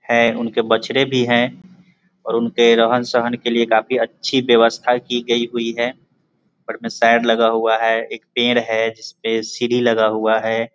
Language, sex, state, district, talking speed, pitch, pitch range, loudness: Hindi, male, Bihar, Muzaffarpur, 180 wpm, 115 Hz, 115-120 Hz, -17 LUFS